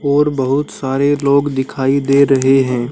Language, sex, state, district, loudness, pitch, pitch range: Hindi, male, Haryana, Jhajjar, -14 LUFS, 135 Hz, 130-140 Hz